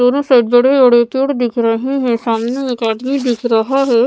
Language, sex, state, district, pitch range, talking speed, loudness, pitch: Hindi, female, Maharashtra, Mumbai Suburban, 235-265 Hz, 205 wpm, -14 LUFS, 245 Hz